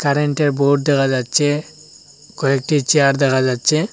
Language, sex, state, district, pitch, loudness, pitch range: Bengali, male, Assam, Hailakandi, 145 Hz, -16 LUFS, 135-150 Hz